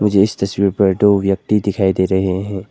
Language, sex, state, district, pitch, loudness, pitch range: Hindi, male, Arunachal Pradesh, Lower Dibang Valley, 100 Hz, -16 LUFS, 95-100 Hz